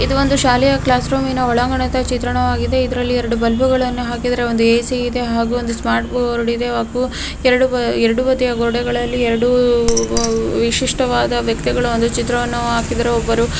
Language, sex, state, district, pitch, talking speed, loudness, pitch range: Kannada, female, Karnataka, Mysore, 240 Hz, 130 wpm, -16 LUFS, 230-250 Hz